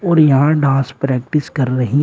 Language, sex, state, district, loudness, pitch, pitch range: Hindi, male, Uttar Pradesh, Shamli, -15 LUFS, 135 Hz, 135-150 Hz